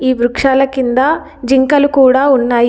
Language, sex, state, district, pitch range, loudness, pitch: Telugu, female, Telangana, Komaram Bheem, 255-280 Hz, -12 LUFS, 265 Hz